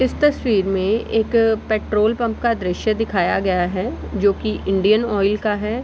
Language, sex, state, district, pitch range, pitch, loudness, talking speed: Hindi, female, Bihar, Bhagalpur, 195-225 Hz, 215 Hz, -19 LUFS, 175 wpm